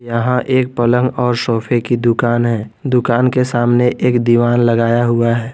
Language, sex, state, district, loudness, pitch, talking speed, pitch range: Hindi, male, Jharkhand, Garhwa, -14 LUFS, 120 Hz, 175 wpm, 120-125 Hz